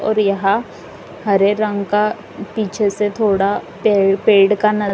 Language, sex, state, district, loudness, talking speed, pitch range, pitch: Hindi, female, Uttar Pradesh, Lalitpur, -16 LUFS, 135 wpm, 200-215 Hz, 205 Hz